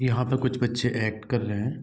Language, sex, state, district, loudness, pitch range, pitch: Hindi, male, Bihar, Gopalganj, -26 LUFS, 110-130 Hz, 125 Hz